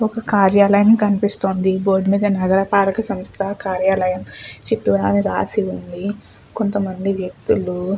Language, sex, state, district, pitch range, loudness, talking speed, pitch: Telugu, female, Andhra Pradesh, Chittoor, 185-200 Hz, -18 LUFS, 100 wpm, 195 Hz